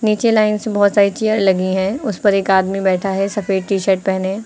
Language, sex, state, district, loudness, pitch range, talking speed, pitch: Hindi, female, Uttar Pradesh, Lucknow, -16 LUFS, 190-210 Hz, 240 wpm, 195 Hz